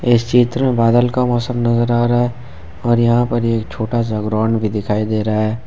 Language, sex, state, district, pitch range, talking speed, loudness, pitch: Hindi, male, Jharkhand, Ranchi, 110-120 Hz, 235 wpm, -16 LUFS, 120 Hz